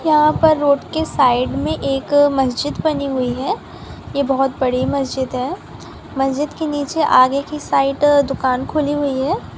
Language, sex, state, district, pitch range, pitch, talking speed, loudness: Hindi, female, Andhra Pradesh, Krishna, 265-295 Hz, 280 Hz, 155 wpm, -17 LUFS